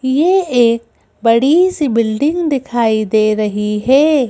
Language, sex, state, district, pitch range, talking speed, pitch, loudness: Hindi, female, Madhya Pradesh, Bhopal, 220-295 Hz, 125 wpm, 245 Hz, -14 LUFS